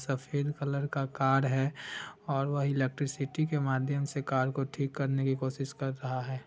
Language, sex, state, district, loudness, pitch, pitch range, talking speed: Hindi, male, Bihar, Vaishali, -32 LUFS, 135 Hz, 135-140 Hz, 185 wpm